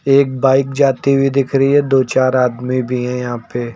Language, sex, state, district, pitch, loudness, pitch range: Hindi, male, Uttar Pradesh, Lucknow, 130 Hz, -15 LUFS, 125-135 Hz